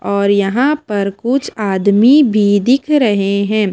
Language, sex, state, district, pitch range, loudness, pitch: Hindi, female, Himachal Pradesh, Shimla, 200-260 Hz, -13 LUFS, 210 Hz